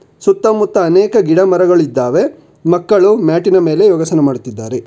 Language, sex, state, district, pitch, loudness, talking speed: Kannada, male, Karnataka, Bangalore, 190 Hz, -12 LUFS, 125 wpm